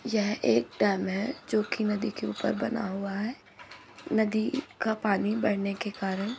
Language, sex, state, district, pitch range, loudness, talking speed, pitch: Hindi, female, Uttar Pradesh, Budaun, 200-220 Hz, -29 LUFS, 180 wpm, 210 Hz